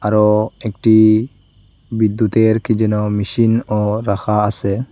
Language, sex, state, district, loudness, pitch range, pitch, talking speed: Bengali, male, Assam, Hailakandi, -15 LUFS, 105-110 Hz, 110 Hz, 110 wpm